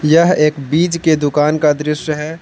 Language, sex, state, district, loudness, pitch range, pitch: Hindi, male, Jharkhand, Palamu, -14 LUFS, 150-160 Hz, 150 Hz